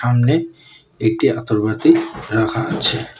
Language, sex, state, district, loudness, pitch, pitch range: Bengali, male, West Bengal, Alipurduar, -17 LUFS, 125 Hz, 110-165 Hz